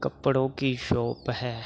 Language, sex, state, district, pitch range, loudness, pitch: Hindi, male, Uttar Pradesh, Hamirpur, 120-135 Hz, -28 LUFS, 125 Hz